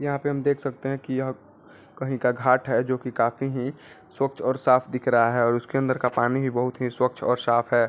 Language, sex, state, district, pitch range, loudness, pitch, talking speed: Hindi, male, Uttar Pradesh, Varanasi, 125-135 Hz, -24 LUFS, 130 Hz, 250 wpm